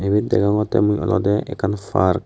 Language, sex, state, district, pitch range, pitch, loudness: Chakma, male, Tripura, West Tripura, 95-105 Hz, 105 Hz, -19 LUFS